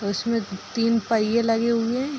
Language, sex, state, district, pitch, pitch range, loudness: Hindi, female, Bihar, Darbhanga, 230 Hz, 225-235 Hz, -23 LUFS